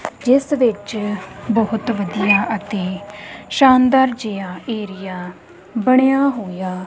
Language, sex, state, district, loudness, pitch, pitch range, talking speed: Punjabi, female, Punjab, Kapurthala, -18 LUFS, 210 Hz, 195-250 Hz, 85 wpm